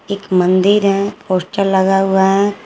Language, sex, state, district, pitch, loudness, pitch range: Hindi, female, Jharkhand, Garhwa, 195 Hz, -14 LUFS, 190-200 Hz